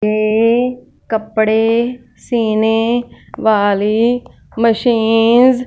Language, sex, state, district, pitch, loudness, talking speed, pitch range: Hindi, female, Punjab, Fazilka, 225 Hz, -14 LUFS, 65 wpm, 220-240 Hz